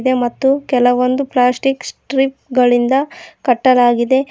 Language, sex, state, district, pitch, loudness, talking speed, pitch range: Kannada, female, Karnataka, Koppal, 255 Hz, -15 LUFS, 85 wpm, 245-270 Hz